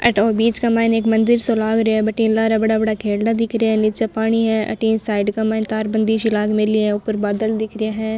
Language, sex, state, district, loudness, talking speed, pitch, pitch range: Marwari, female, Rajasthan, Nagaur, -18 LUFS, 250 wpm, 220 Hz, 215-225 Hz